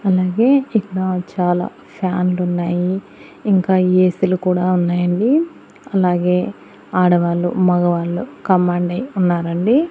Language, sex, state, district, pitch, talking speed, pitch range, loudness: Telugu, female, Andhra Pradesh, Annamaya, 180 Hz, 80 wpm, 175-190 Hz, -17 LUFS